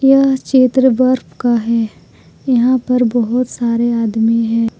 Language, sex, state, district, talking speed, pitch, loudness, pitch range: Hindi, female, Jharkhand, Ranchi, 140 wpm, 240 Hz, -14 LUFS, 230-255 Hz